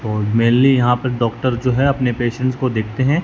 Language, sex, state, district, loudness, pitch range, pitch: Hindi, male, Rajasthan, Bikaner, -17 LUFS, 115-130 Hz, 125 Hz